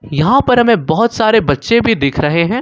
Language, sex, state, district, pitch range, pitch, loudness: Hindi, male, Jharkhand, Ranchi, 150-235 Hz, 220 Hz, -12 LUFS